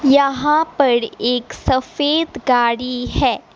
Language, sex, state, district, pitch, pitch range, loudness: Hindi, female, Assam, Kamrup Metropolitan, 260 Hz, 245-290 Hz, -17 LUFS